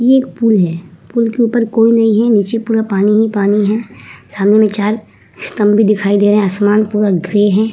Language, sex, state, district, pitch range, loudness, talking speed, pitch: Hindi, female, Uttar Pradesh, Hamirpur, 205-225 Hz, -13 LUFS, 225 wpm, 210 Hz